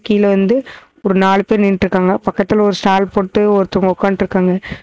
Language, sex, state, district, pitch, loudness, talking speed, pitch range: Tamil, female, Tamil Nadu, Namakkal, 195 Hz, -14 LUFS, 160 wpm, 190-205 Hz